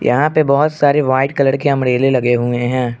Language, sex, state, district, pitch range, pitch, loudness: Hindi, male, Arunachal Pradesh, Lower Dibang Valley, 125-145 Hz, 135 Hz, -14 LUFS